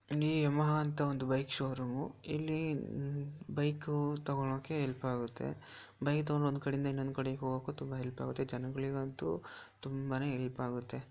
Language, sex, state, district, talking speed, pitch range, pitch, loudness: Kannada, male, Karnataka, Dharwad, 130 wpm, 130-145 Hz, 135 Hz, -37 LUFS